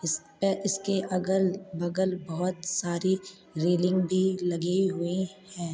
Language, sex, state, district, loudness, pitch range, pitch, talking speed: Hindi, female, Uttar Pradesh, Hamirpur, -28 LUFS, 175-190 Hz, 185 Hz, 115 wpm